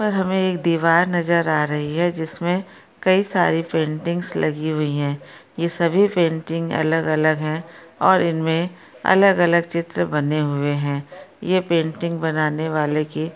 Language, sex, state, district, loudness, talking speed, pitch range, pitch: Hindi, female, Maharashtra, Pune, -20 LUFS, 160 wpm, 155-175 Hz, 165 Hz